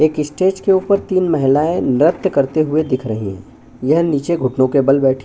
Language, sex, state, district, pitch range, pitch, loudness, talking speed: Hindi, male, Chhattisgarh, Bastar, 135-175 Hz, 150 Hz, -16 LUFS, 215 wpm